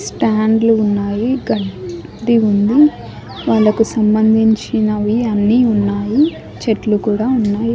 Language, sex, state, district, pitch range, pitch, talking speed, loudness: Telugu, male, Andhra Pradesh, Annamaya, 210-230 Hz, 220 Hz, 85 wpm, -15 LUFS